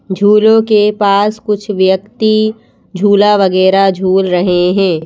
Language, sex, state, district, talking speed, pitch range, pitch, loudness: Hindi, female, Madhya Pradesh, Bhopal, 120 wpm, 190-210 Hz, 200 Hz, -11 LUFS